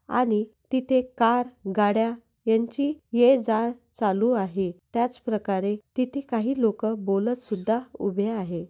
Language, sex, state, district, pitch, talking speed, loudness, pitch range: Marathi, female, Maharashtra, Nagpur, 225 Hz, 105 wpm, -25 LUFS, 205-245 Hz